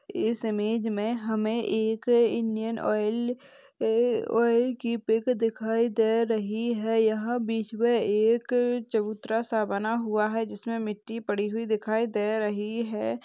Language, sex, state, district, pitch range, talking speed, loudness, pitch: Hindi, female, Bihar, Madhepura, 215-235 Hz, 140 wpm, -27 LUFS, 225 Hz